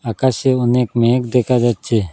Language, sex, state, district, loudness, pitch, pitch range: Bengali, male, Assam, Hailakandi, -16 LUFS, 120 Hz, 115-125 Hz